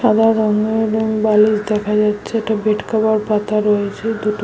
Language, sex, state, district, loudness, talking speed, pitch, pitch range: Bengali, female, West Bengal, Malda, -16 LUFS, 150 wpm, 215 Hz, 210-220 Hz